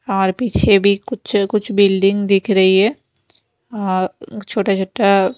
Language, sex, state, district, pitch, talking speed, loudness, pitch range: Hindi, female, Bihar, West Champaran, 200 Hz, 120 wpm, -16 LUFS, 195-210 Hz